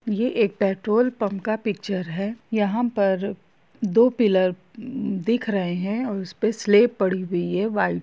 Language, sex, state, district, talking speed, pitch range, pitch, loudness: Hindi, female, Jharkhand, Jamtara, 150 wpm, 190-225 Hz, 210 Hz, -23 LUFS